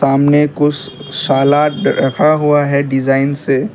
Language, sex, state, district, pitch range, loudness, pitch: Hindi, male, Assam, Kamrup Metropolitan, 135-150 Hz, -13 LUFS, 145 Hz